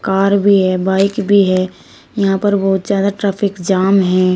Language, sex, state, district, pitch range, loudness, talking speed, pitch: Hindi, female, Uttar Pradesh, Shamli, 190-200 Hz, -14 LUFS, 180 wpm, 195 Hz